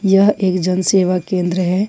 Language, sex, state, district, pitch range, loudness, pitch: Hindi, female, Jharkhand, Ranchi, 180-195 Hz, -16 LUFS, 185 Hz